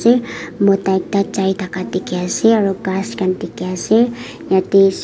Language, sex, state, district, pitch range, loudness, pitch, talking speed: Nagamese, female, Nagaland, Kohima, 185-200 Hz, -17 LUFS, 190 Hz, 145 wpm